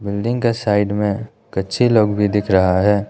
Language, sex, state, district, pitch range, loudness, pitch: Hindi, male, Arunachal Pradesh, Lower Dibang Valley, 100-110 Hz, -17 LUFS, 105 Hz